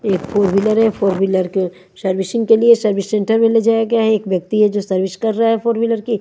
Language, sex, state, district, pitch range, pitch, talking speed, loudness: Hindi, female, Haryana, Charkhi Dadri, 195-225 Hz, 215 Hz, 240 wpm, -16 LUFS